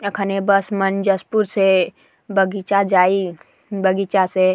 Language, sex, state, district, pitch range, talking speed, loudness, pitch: Sadri, female, Chhattisgarh, Jashpur, 190-200 Hz, 130 wpm, -18 LUFS, 195 Hz